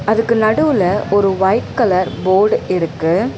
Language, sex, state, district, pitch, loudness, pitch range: Tamil, female, Tamil Nadu, Chennai, 195 Hz, -15 LUFS, 185-215 Hz